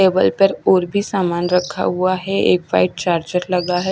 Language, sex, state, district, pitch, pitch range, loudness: Hindi, female, Chhattisgarh, Raipur, 180 Hz, 175-190 Hz, -17 LUFS